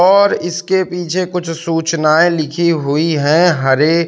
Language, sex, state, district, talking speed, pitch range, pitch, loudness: Hindi, male, Madhya Pradesh, Katni, 135 wpm, 155-180 Hz, 170 Hz, -14 LUFS